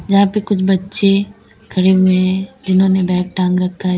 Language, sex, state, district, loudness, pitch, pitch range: Hindi, female, Uttar Pradesh, Lalitpur, -15 LUFS, 190 Hz, 185-195 Hz